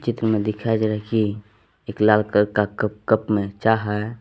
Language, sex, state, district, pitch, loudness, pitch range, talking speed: Hindi, male, Jharkhand, Palamu, 105 Hz, -21 LUFS, 105-110 Hz, 215 wpm